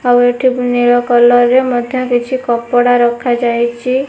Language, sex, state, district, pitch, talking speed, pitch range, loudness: Odia, female, Odisha, Nuapada, 245 Hz, 130 wpm, 240-250 Hz, -12 LUFS